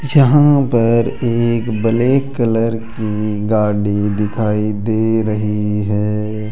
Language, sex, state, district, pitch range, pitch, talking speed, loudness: Hindi, male, Rajasthan, Jaipur, 105-115 Hz, 110 Hz, 100 wpm, -16 LUFS